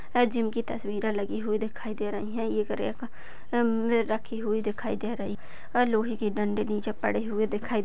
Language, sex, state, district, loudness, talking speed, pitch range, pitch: Hindi, female, Maharashtra, Sindhudurg, -29 LUFS, 185 wpm, 210-230 Hz, 220 Hz